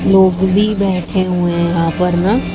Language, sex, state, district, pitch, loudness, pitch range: Hindi, female, Haryana, Jhajjar, 185 Hz, -14 LUFS, 175-195 Hz